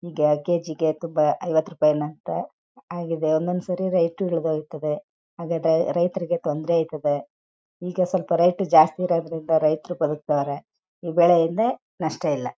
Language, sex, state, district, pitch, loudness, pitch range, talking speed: Kannada, female, Karnataka, Chamarajanagar, 165 Hz, -23 LUFS, 155-175 Hz, 110 wpm